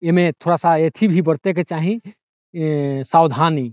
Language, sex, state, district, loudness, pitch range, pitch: Bhojpuri, male, Bihar, Saran, -18 LUFS, 160-180 Hz, 165 Hz